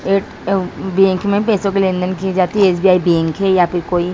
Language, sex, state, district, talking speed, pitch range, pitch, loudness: Hindi, female, Bihar, Saran, 215 wpm, 180-195 Hz, 190 Hz, -15 LUFS